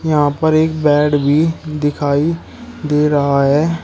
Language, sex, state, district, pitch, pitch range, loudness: Hindi, male, Uttar Pradesh, Shamli, 150 Hz, 145-160 Hz, -15 LUFS